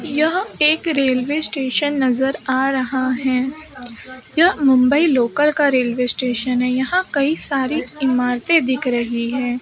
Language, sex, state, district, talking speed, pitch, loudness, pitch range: Hindi, female, Maharashtra, Mumbai Suburban, 135 wpm, 265 Hz, -17 LUFS, 255-300 Hz